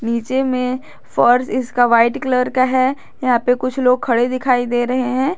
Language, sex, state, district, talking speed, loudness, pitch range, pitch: Hindi, female, Jharkhand, Garhwa, 190 wpm, -17 LUFS, 245-255 Hz, 250 Hz